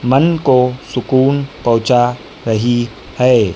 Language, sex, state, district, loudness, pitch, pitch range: Hindi, female, Madhya Pradesh, Dhar, -14 LUFS, 125 Hz, 120-135 Hz